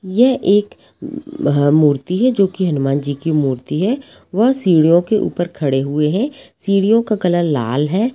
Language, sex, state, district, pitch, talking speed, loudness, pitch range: Hindi, female, Jharkhand, Sahebganj, 175 Hz, 160 wpm, -16 LUFS, 145-210 Hz